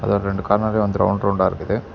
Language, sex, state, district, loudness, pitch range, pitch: Tamil, male, Tamil Nadu, Namakkal, -20 LUFS, 95-105 Hz, 100 Hz